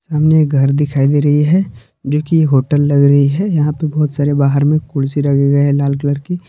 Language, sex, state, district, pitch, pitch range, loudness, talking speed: Hindi, male, Jharkhand, Palamu, 145 Hz, 140-155 Hz, -13 LUFS, 230 wpm